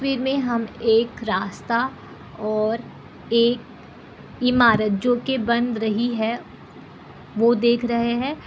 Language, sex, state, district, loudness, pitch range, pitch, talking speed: Hindi, female, Bihar, Kishanganj, -21 LUFS, 225-245 Hz, 235 Hz, 135 wpm